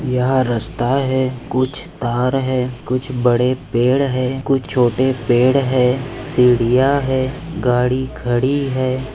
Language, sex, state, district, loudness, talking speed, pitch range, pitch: Hindi, male, Maharashtra, Nagpur, -17 LUFS, 125 wpm, 125-130 Hz, 130 Hz